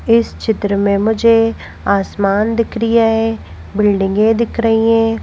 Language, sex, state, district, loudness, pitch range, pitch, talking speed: Hindi, female, Madhya Pradesh, Bhopal, -14 LUFS, 205-230 Hz, 225 Hz, 140 wpm